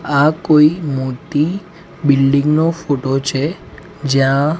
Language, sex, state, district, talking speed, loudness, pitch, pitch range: Gujarati, male, Gujarat, Gandhinagar, 105 wpm, -15 LUFS, 150 Hz, 140-160 Hz